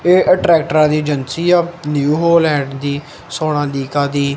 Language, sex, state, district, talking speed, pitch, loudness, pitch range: Punjabi, male, Punjab, Kapurthala, 150 wpm, 150 Hz, -15 LUFS, 145-170 Hz